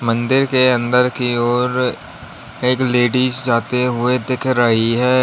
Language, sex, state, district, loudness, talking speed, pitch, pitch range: Hindi, male, Uttar Pradesh, Lalitpur, -16 LUFS, 140 wpm, 125 Hz, 120-130 Hz